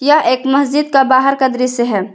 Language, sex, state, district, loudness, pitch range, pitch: Hindi, female, Jharkhand, Ranchi, -13 LUFS, 250-280 Hz, 265 Hz